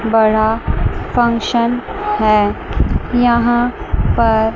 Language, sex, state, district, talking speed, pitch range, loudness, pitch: Hindi, male, Chandigarh, Chandigarh, 65 wpm, 220-240 Hz, -15 LUFS, 235 Hz